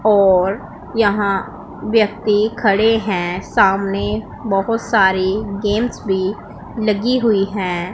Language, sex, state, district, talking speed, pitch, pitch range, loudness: Hindi, female, Punjab, Pathankot, 100 wpm, 205 Hz, 195-220 Hz, -17 LUFS